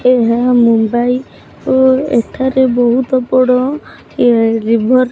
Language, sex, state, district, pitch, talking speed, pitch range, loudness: Odia, female, Odisha, Khordha, 250 Hz, 105 wpm, 235-260 Hz, -12 LUFS